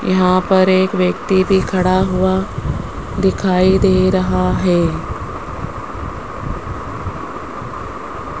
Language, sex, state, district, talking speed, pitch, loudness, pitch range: Hindi, female, Rajasthan, Jaipur, 80 wpm, 185 Hz, -17 LUFS, 185-190 Hz